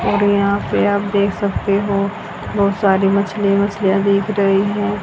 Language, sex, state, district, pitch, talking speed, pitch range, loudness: Hindi, female, Haryana, Charkhi Dadri, 200 Hz, 165 wpm, 200-205 Hz, -17 LUFS